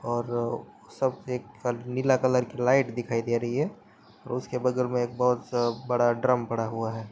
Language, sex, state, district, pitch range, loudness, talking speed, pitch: Hindi, male, Maharashtra, Pune, 120-125 Hz, -27 LUFS, 175 wpm, 120 Hz